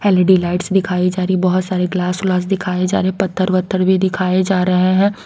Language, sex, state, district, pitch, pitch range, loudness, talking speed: Hindi, female, Haryana, Rohtak, 185 Hz, 180-190 Hz, -16 LUFS, 240 wpm